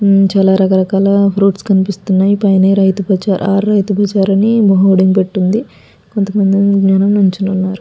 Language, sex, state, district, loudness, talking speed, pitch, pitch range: Telugu, female, Andhra Pradesh, Guntur, -12 LUFS, 130 wpm, 195 Hz, 190-200 Hz